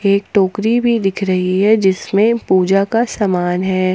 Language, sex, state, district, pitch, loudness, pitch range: Hindi, female, Jharkhand, Ranchi, 195 Hz, -15 LUFS, 185-220 Hz